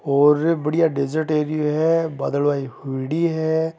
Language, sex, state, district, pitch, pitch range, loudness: Hindi, male, Rajasthan, Nagaur, 155 Hz, 140-160 Hz, -20 LUFS